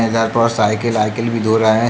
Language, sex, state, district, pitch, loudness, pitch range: Hindi, male, Uttar Pradesh, Jalaun, 115 Hz, -16 LUFS, 110-115 Hz